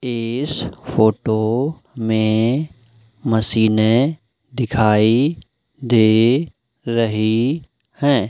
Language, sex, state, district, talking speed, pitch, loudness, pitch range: Hindi, male, Madhya Pradesh, Umaria, 60 wpm, 115 Hz, -18 LUFS, 110-135 Hz